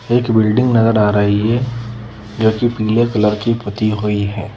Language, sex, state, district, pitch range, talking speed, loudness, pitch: Hindi, female, Madhya Pradesh, Bhopal, 105-115 Hz, 195 wpm, -15 LUFS, 110 Hz